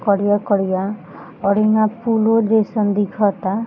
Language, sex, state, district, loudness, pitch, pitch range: Bhojpuri, female, Bihar, Gopalganj, -17 LUFS, 205 Hz, 200-220 Hz